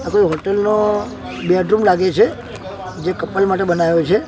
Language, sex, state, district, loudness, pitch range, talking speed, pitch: Gujarati, male, Gujarat, Gandhinagar, -16 LUFS, 180-210 Hz, 170 wpm, 190 Hz